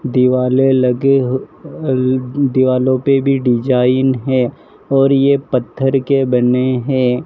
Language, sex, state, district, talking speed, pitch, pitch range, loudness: Hindi, male, Madhya Pradesh, Dhar, 125 wpm, 130 Hz, 125-135 Hz, -14 LUFS